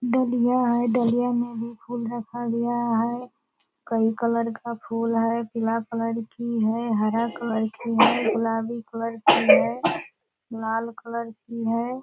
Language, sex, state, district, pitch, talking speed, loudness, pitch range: Hindi, female, Bihar, Purnia, 230 Hz, 150 wpm, -24 LUFS, 230-240 Hz